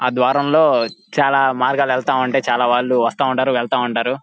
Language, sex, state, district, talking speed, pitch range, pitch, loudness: Telugu, male, Andhra Pradesh, Guntur, 185 wpm, 125-135 Hz, 130 Hz, -17 LUFS